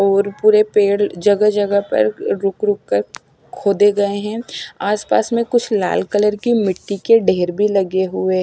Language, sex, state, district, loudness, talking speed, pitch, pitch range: Hindi, female, Chandigarh, Chandigarh, -17 LUFS, 180 wpm, 205 Hz, 195-210 Hz